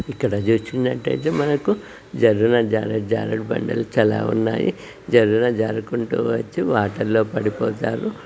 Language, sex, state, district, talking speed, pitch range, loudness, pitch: Telugu, female, Telangana, Nalgonda, 115 wpm, 110-120 Hz, -20 LUFS, 110 Hz